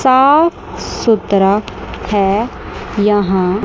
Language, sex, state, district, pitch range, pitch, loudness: Hindi, female, Chandigarh, Chandigarh, 195-245 Hz, 210 Hz, -14 LUFS